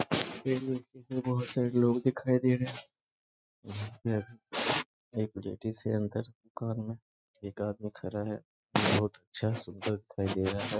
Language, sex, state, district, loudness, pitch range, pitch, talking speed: Hindi, male, Bihar, Sitamarhi, -33 LUFS, 105-125 Hz, 110 Hz, 145 wpm